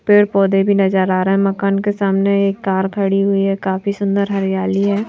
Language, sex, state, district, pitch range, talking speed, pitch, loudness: Hindi, female, Madhya Pradesh, Bhopal, 195-200 Hz, 225 wpm, 195 Hz, -16 LUFS